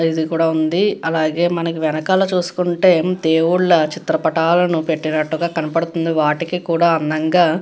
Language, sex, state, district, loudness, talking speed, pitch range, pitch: Telugu, female, Andhra Pradesh, Guntur, -17 LUFS, 135 wpm, 160-175 Hz, 165 Hz